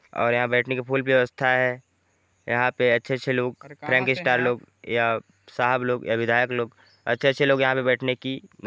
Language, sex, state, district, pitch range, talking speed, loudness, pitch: Hindi, male, Chhattisgarh, Sarguja, 120-130 Hz, 165 wpm, -23 LUFS, 125 Hz